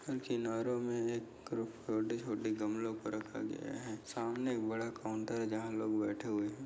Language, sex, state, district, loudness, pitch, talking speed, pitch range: Hindi, male, Goa, North and South Goa, -39 LUFS, 115 Hz, 160 wpm, 110-115 Hz